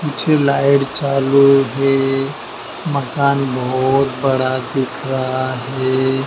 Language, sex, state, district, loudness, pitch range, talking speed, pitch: Hindi, male, Madhya Pradesh, Dhar, -16 LUFS, 130-140 Hz, 95 wpm, 135 Hz